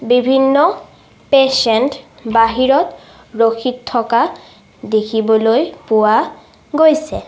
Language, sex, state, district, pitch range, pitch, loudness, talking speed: Assamese, female, Assam, Sonitpur, 225-270 Hz, 235 Hz, -14 LUFS, 65 wpm